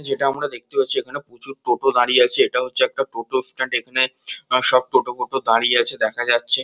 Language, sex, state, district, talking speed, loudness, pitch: Bengali, male, West Bengal, Kolkata, 200 wpm, -18 LUFS, 130 Hz